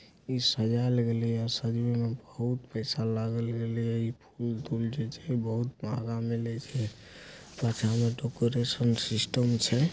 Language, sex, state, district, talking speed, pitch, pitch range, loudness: Angika, male, Bihar, Supaul, 140 wpm, 115 Hz, 115-120 Hz, -30 LUFS